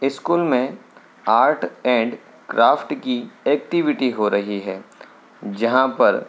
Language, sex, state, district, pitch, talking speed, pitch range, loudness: Hindi, male, Uttar Pradesh, Hamirpur, 130 Hz, 125 wpm, 105-170 Hz, -20 LUFS